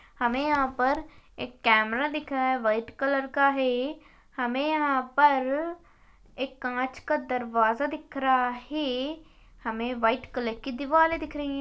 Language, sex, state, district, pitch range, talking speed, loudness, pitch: Hindi, female, Maharashtra, Aurangabad, 250-290 Hz, 145 wpm, -27 LUFS, 265 Hz